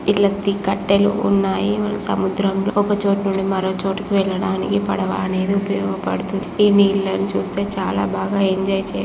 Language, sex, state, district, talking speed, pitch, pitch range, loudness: Telugu, female, Andhra Pradesh, Guntur, 140 wpm, 195 Hz, 190-200 Hz, -19 LUFS